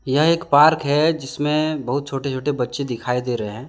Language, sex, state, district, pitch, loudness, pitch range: Hindi, male, Jharkhand, Deoghar, 140 Hz, -20 LUFS, 125-150 Hz